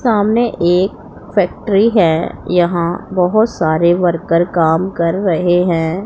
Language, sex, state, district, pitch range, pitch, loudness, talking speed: Hindi, female, Punjab, Pathankot, 170-200 Hz, 175 Hz, -14 LUFS, 120 wpm